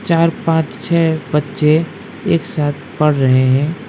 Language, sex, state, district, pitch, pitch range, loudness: Hindi, male, West Bengal, Alipurduar, 160 Hz, 145-165 Hz, -15 LUFS